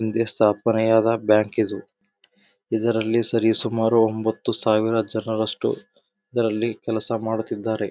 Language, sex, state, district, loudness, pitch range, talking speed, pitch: Kannada, male, Karnataka, Gulbarga, -22 LUFS, 110-115 Hz, 90 wpm, 110 Hz